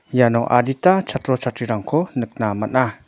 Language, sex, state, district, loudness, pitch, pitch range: Garo, male, Meghalaya, North Garo Hills, -19 LUFS, 125 Hz, 115-135 Hz